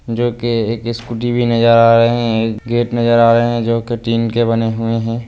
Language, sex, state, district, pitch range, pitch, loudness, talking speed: Hindi, male, Bihar, Kishanganj, 115-120 Hz, 115 Hz, -15 LUFS, 250 wpm